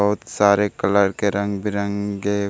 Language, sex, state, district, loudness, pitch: Hindi, male, Bihar, Jamui, -20 LUFS, 100 Hz